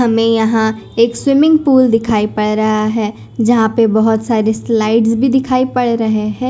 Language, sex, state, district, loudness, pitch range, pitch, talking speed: Hindi, female, Punjab, Kapurthala, -13 LUFS, 220-245 Hz, 225 Hz, 175 wpm